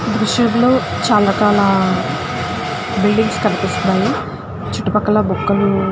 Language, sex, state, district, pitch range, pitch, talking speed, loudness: Telugu, female, Andhra Pradesh, Guntur, 195-215 Hz, 210 Hz, 110 wpm, -16 LUFS